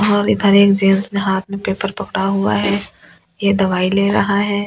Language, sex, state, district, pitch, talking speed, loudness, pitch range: Hindi, female, Delhi, New Delhi, 200 Hz, 205 wpm, -16 LUFS, 190-200 Hz